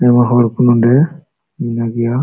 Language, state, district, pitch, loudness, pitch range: Santali, Jharkhand, Sahebganj, 120 Hz, -13 LUFS, 120-140 Hz